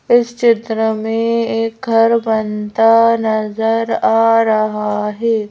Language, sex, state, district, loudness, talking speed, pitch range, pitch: Hindi, female, Madhya Pradesh, Bhopal, -15 LUFS, 110 wpm, 220-230 Hz, 225 Hz